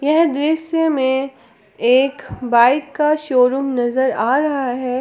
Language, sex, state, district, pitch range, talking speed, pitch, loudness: Hindi, female, Jharkhand, Palamu, 250-295 Hz, 130 wpm, 265 Hz, -17 LUFS